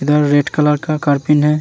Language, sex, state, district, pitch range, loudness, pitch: Hindi, male, Uttarakhand, Tehri Garhwal, 145-150 Hz, -14 LUFS, 150 Hz